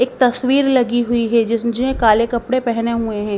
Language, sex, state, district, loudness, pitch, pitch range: Hindi, female, Punjab, Kapurthala, -16 LUFS, 235 Hz, 230-255 Hz